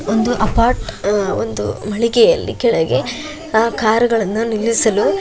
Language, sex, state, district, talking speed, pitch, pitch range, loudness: Kannada, female, Karnataka, Shimoga, 80 wpm, 220 Hz, 210-235 Hz, -16 LUFS